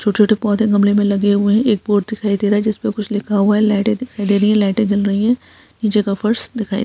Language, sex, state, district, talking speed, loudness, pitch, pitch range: Hindi, female, Bihar, Saharsa, 280 wpm, -16 LUFS, 210 Hz, 205-215 Hz